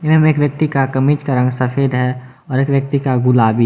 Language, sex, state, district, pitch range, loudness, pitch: Hindi, male, Jharkhand, Garhwa, 125-145 Hz, -15 LUFS, 135 Hz